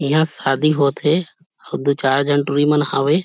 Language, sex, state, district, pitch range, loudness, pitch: Chhattisgarhi, male, Chhattisgarh, Rajnandgaon, 140-155 Hz, -17 LUFS, 145 Hz